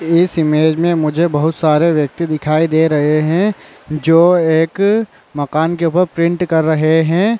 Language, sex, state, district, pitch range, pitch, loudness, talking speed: Hindi, male, Chhattisgarh, Raigarh, 155-170 Hz, 160 Hz, -14 LUFS, 160 wpm